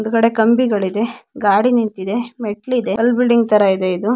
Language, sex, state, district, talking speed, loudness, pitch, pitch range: Kannada, female, Karnataka, Bijapur, 175 wpm, -16 LUFS, 225 Hz, 210-240 Hz